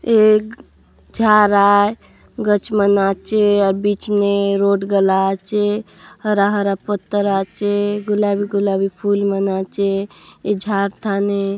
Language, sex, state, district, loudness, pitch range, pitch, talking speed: Halbi, female, Chhattisgarh, Bastar, -17 LUFS, 195-205 Hz, 200 Hz, 130 wpm